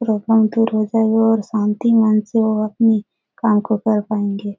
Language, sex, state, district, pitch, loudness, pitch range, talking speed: Hindi, female, Bihar, Jahanabad, 215 Hz, -17 LUFS, 210-225 Hz, 185 wpm